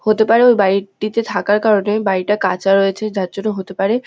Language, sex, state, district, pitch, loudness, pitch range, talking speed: Bengali, female, West Bengal, North 24 Parganas, 205 Hz, -16 LUFS, 195-215 Hz, 205 wpm